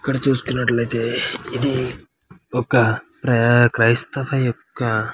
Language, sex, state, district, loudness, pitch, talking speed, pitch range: Telugu, male, Andhra Pradesh, Anantapur, -19 LUFS, 125 Hz, 95 wpm, 115-130 Hz